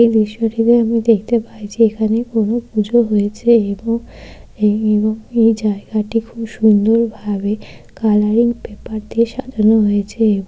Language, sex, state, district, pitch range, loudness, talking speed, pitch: Bengali, female, West Bengal, Malda, 210-230 Hz, -16 LUFS, 115 wpm, 220 Hz